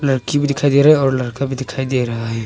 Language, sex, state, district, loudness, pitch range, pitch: Hindi, male, Arunachal Pradesh, Longding, -16 LUFS, 125-140 Hz, 135 Hz